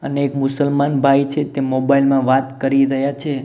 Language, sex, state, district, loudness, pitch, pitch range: Gujarati, male, Gujarat, Gandhinagar, -17 LUFS, 140 Hz, 135-140 Hz